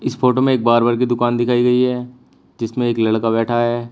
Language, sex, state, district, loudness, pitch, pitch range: Hindi, male, Uttar Pradesh, Shamli, -17 LUFS, 120 Hz, 120-125 Hz